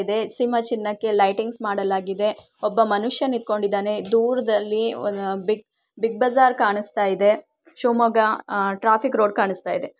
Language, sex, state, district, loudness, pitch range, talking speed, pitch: Kannada, female, Karnataka, Shimoga, -22 LUFS, 205-235 Hz, 110 wpm, 215 Hz